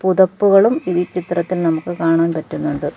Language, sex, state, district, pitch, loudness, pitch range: Malayalam, female, Kerala, Kollam, 175 Hz, -17 LUFS, 165-185 Hz